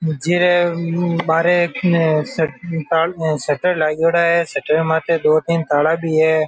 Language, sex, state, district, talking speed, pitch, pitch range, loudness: Marwari, male, Rajasthan, Nagaur, 130 wpm, 165 Hz, 155-170 Hz, -17 LUFS